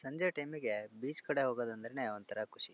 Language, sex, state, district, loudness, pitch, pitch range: Kannada, male, Karnataka, Shimoga, -39 LUFS, 130 Hz, 110-145 Hz